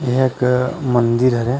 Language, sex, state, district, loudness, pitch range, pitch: Chhattisgarhi, male, Chhattisgarh, Rajnandgaon, -17 LUFS, 120-130 Hz, 125 Hz